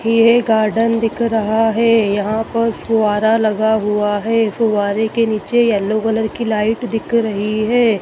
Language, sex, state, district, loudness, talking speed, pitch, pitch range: Hindi, female, Madhya Pradesh, Dhar, -16 LUFS, 155 wpm, 220 Hz, 215-230 Hz